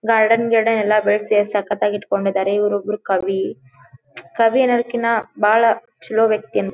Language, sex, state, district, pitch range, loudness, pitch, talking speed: Kannada, female, Karnataka, Dharwad, 200-225 Hz, -18 LUFS, 210 Hz, 140 wpm